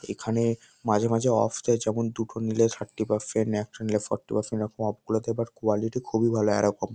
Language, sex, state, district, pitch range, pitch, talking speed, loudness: Bengali, male, West Bengal, North 24 Parganas, 105-115 Hz, 110 Hz, 205 wpm, -27 LUFS